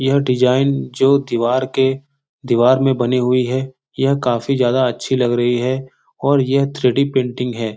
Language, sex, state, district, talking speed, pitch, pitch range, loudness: Hindi, male, Bihar, Supaul, 175 wpm, 130 Hz, 125-135 Hz, -17 LUFS